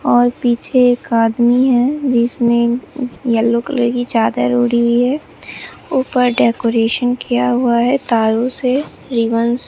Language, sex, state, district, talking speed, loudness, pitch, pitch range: Hindi, female, Bihar, Katihar, 135 wpm, -15 LUFS, 240 Hz, 235-250 Hz